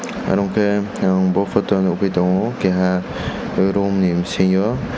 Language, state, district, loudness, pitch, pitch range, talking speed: Kokborok, Tripura, West Tripura, -18 LUFS, 95 Hz, 95-100 Hz, 120 wpm